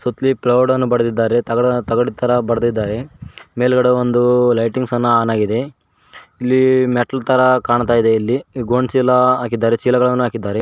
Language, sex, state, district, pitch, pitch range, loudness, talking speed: Kannada, male, Karnataka, Koppal, 125 Hz, 115-125 Hz, -16 LUFS, 130 wpm